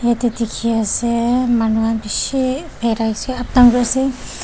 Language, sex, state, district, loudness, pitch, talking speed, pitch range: Nagamese, female, Nagaland, Dimapur, -17 LUFS, 235 Hz, 150 wpm, 225-250 Hz